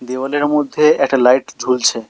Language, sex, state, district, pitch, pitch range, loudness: Bengali, male, West Bengal, Alipurduar, 135 Hz, 125-145 Hz, -15 LUFS